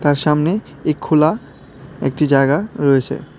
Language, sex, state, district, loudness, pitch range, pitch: Bengali, male, Tripura, West Tripura, -17 LUFS, 140-155 Hz, 150 Hz